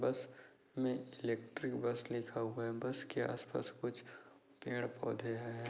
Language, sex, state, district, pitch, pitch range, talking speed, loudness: Hindi, male, Bihar, Begusarai, 120 Hz, 115-125 Hz, 135 wpm, -41 LUFS